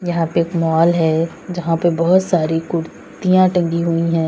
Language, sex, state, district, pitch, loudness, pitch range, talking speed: Hindi, female, Uttar Pradesh, Saharanpur, 170 Hz, -17 LUFS, 165-175 Hz, 180 wpm